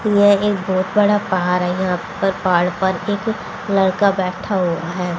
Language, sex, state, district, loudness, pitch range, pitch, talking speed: Hindi, female, Haryana, Rohtak, -18 LUFS, 180-205 Hz, 190 Hz, 175 wpm